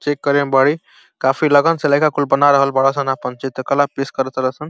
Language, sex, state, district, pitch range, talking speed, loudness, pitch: Bhojpuri, male, Uttar Pradesh, Deoria, 135-145 Hz, 205 wpm, -16 LUFS, 140 Hz